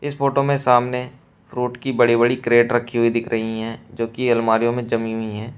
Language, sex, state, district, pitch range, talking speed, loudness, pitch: Hindi, male, Uttar Pradesh, Shamli, 115-125 Hz, 225 wpm, -19 LUFS, 120 Hz